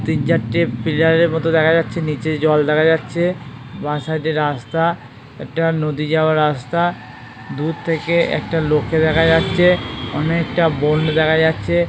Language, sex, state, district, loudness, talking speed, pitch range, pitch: Bengali, male, West Bengal, Jhargram, -17 LUFS, 150 wpm, 150-165 Hz, 160 Hz